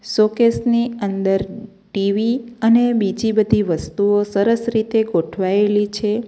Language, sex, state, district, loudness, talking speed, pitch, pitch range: Gujarati, female, Gujarat, Navsari, -18 LUFS, 115 wpm, 215 Hz, 200-230 Hz